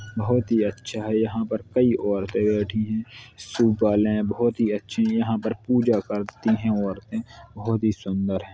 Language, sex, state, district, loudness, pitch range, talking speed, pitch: Hindi, male, Uttar Pradesh, Hamirpur, -24 LUFS, 105-115 Hz, 190 wpm, 110 Hz